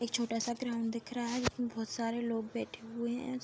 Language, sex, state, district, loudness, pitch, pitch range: Hindi, female, Uttar Pradesh, Jalaun, -36 LUFS, 235 Hz, 230-240 Hz